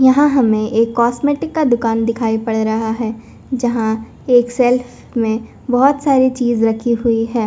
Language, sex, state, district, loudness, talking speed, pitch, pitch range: Hindi, female, Punjab, Kapurthala, -16 LUFS, 160 wpm, 235 Hz, 225-255 Hz